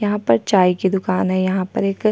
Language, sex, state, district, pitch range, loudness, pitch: Hindi, female, Chhattisgarh, Sukma, 185-200 Hz, -18 LUFS, 190 Hz